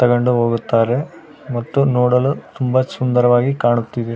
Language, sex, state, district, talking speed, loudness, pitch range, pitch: Kannada, male, Karnataka, Raichur, 100 wpm, -17 LUFS, 120-135 Hz, 125 Hz